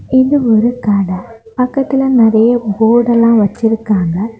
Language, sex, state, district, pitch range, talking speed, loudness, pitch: Tamil, female, Tamil Nadu, Kanyakumari, 215-245 Hz, 110 wpm, -12 LUFS, 225 Hz